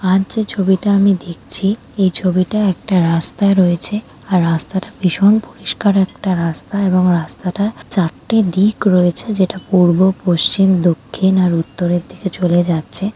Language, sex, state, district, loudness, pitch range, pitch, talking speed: Bengali, female, West Bengal, Jhargram, -15 LUFS, 175-200 Hz, 190 Hz, 140 wpm